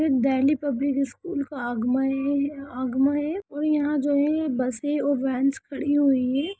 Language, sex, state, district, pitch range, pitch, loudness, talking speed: Hindi, female, Bihar, Sitamarhi, 270-290 Hz, 280 Hz, -24 LUFS, 175 wpm